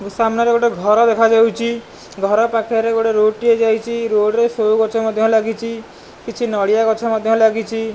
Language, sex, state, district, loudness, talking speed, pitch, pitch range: Odia, male, Odisha, Malkangiri, -16 LUFS, 160 wpm, 225 Hz, 220-230 Hz